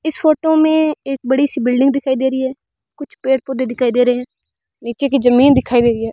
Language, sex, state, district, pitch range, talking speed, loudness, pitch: Hindi, female, Rajasthan, Bikaner, 250-280 Hz, 245 wpm, -15 LUFS, 265 Hz